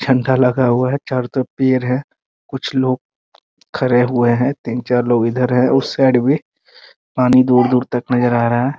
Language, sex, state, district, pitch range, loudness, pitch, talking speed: Hindi, male, Bihar, Muzaffarpur, 125-130 Hz, -16 LUFS, 125 Hz, 190 wpm